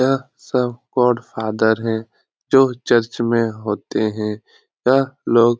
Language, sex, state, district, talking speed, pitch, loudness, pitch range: Hindi, male, Bihar, Lakhisarai, 140 wpm, 115 Hz, -19 LUFS, 110-125 Hz